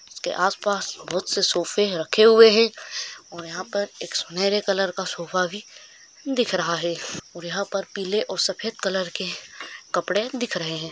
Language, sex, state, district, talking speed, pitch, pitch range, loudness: Hindi, male, Maharashtra, Solapur, 175 wpm, 195 Hz, 175-210 Hz, -23 LUFS